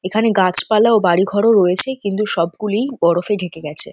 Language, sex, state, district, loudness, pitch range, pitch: Bengali, female, West Bengal, North 24 Parganas, -16 LUFS, 175-215 Hz, 200 Hz